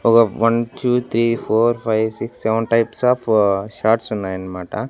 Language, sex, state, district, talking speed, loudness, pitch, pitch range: Telugu, male, Andhra Pradesh, Annamaya, 160 wpm, -18 LUFS, 115 Hz, 110-115 Hz